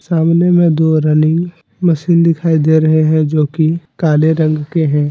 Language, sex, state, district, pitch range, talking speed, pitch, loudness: Hindi, male, Jharkhand, Deoghar, 155-165 Hz, 175 wpm, 160 Hz, -13 LUFS